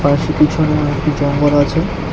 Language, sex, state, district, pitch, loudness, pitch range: Bengali, male, Tripura, West Tripura, 150 Hz, -15 LUFS, 145-155 Hz